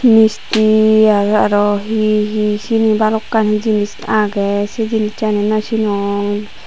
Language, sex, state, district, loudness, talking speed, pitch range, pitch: Chakma, female, Tripura, Unakoti, -14 LUFS, 115 wpm, 205-220 Hz, 215 Hz